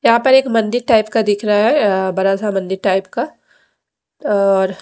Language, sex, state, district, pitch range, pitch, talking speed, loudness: Hindi, female, Odisha, Malkangiri, 195-225 Hz, 205 Hz, 185 wpm, -15 LUFS